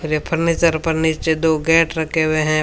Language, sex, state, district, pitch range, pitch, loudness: Hindi, female, Rajasthan, Bikaner, 155-165 Hz, 160 Hz, -17 LUFS